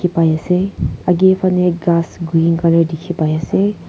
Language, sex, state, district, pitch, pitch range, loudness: Nagamese, female, Nagaland, Kohima, 170 Hz, 165-180 Hz, -15 LUFS